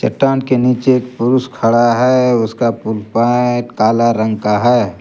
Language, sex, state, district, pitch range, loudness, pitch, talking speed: Hindi, male, Jharkhand, Garhwa, 115-125 Hz, -14 LUFS, 120 Hz, 155 wpm